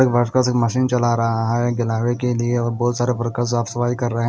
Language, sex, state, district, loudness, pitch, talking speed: Hindi, male, Odisha, Malkangiri, -20 LUFS, 120 Hz, 250 wpm